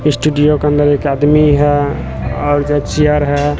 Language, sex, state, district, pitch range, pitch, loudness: Hindi, male, Bihar, Katihar, 145-150 Hz, 145 Hz, -13 LUFS